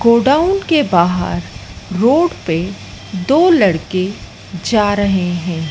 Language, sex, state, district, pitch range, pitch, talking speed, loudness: Hindi, female, Madhya Pradesh, Dhar, 170-265 Hz, 190 Hz, 105 wpm, -15 LUFS